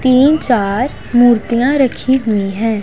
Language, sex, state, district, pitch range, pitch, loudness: Hindi, female, Punjab, Pathankot, 220-260 Hz, 245 Hz, -13 LUFS